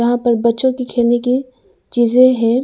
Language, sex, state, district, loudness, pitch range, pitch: Hindi, female, Arunachal Pradesh, Lower Dibang Valley, -15 LUFS, 235-255 Hz, 245 Hz